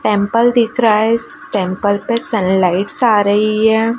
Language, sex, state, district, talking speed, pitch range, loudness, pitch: Hindi, female, Madhya Pradesh, Dhar, 165 wpm, 205-230 Hz, -14 LUFS, 215 Hz